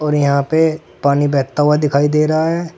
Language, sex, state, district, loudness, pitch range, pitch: Hindi, male, Uttar Pradesh, Saharanpur, -15 LUFS, 145-160 Hz, 150 Hz